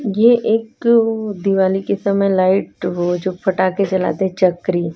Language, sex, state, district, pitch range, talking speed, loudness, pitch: Hindi, female, Chhattisgarh, Raipur, 185-210 Hz, 145 wpm, -17 LUFS, 195 Hz